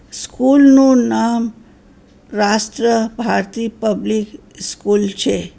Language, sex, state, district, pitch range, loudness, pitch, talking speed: Gujarati, female, Gujarat, Valsad, 205-235 Hz, -15 LUFS, 225 Hz, 85 wpm